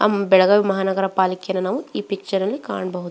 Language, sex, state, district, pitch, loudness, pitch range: Kannada, female, Karnataka, Belgaum, 195 Hz, -20 LUFS, 185-200 Hz